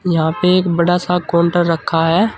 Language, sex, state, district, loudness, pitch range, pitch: Hindi, male, Uttar Pradesh, Saharanpur, -15 LUFS, 170-180 Hz, 175 Hz